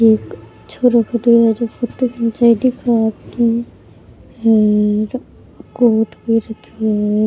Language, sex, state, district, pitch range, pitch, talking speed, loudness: Rajasthani, female, Rajasthan, Churu, 220-240 Hz, 230 Hz, 90 wpm, -15 LUFS